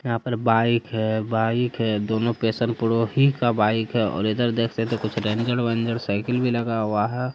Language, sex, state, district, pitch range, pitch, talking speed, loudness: Hindi, male, Bihar, Saharsa, 110-120 Hz, 115 Hz, 210 wpm, -23 LUFS